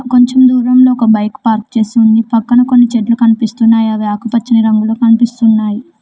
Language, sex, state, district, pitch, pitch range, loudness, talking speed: Telugu, female, Telangana, Mahabubabad, 230 Hz, 220-245 Hz, -10 LUFS, 150 wpm